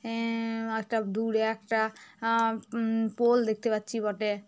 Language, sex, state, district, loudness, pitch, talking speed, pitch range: Bengali, female, West Bengal, Jhargram, -29 LUFS, 225 Hz, 150 wpm, 220-230 Hz